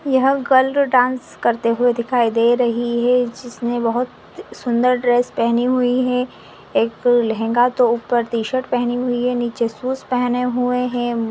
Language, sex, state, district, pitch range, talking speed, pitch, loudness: Hindi, female, Maharashtra, Nagpur, 235-250 Hz, 155 wpm, 245 Hz, -18 LUFS